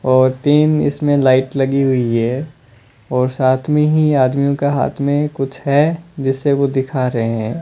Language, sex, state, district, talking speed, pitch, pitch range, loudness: Hindi, male, Rajasthan, Bikaner, 175 wpm, 135 Hz, 130-145 Hz, -16 LUFS